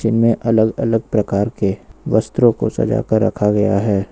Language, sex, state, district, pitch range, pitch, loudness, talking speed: Hindi, male, Uttar Pradesh, Lucknow, 100-115 Hz, 110 Hz, -17 LUFS, 175 wpm